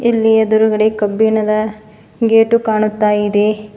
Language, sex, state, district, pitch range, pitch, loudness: Kannada, female, Karnataka, Bidar, 215-220 Hz, 215 Hz, -14 LUFS